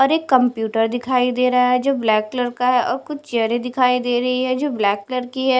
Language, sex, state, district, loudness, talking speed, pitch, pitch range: Hindi, female, Punjab, Kapurthala, -19 LUFS, 255 wpm, 250 Hz, 240-260 Hz